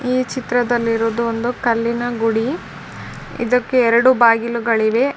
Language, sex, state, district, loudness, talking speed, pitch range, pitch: Kannada, female, Karnataka, Dharwad, -17 LUFS, 105 wpm, 230-250 Hz, 240 Hz